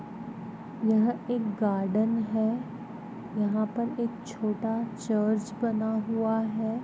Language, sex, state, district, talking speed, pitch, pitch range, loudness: Hindi, female, Goa, North and South Goa, 105 wpm, 220 Hz, 215-225 Hz, -29 LUFS